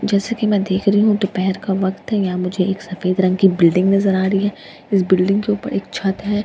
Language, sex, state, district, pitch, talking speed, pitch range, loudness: Hindi, female, Bihar, Katihar, 195 Hz, 280 wpm, 185-205 Hz, -17 LUFS